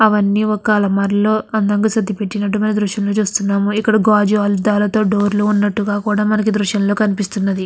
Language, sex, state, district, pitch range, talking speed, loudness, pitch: Telugu, female, Andhra Pradesh, Guntur, 205-215 Hz, 155 wpm, -16 LUFS, 210 Hz